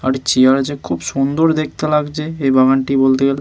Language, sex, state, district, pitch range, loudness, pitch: Bengali, male, West Bengal, Malda, 130-150 Hz, -15 LUFS, 135 Hz